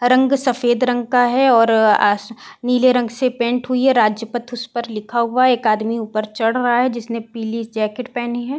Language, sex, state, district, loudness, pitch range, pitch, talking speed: Hindi, female, Uttar Pradesh, Varanasi, -17 LUFS, 225-250 Hz, 240 Hz, 200 wpm